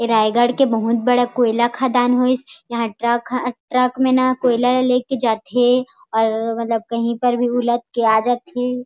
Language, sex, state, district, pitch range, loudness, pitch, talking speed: Chhattisgarhi, female, Chhattisgarh, Raigarh, 235-250 Hz, -18 LUFS, 245 Hz, 165 wpm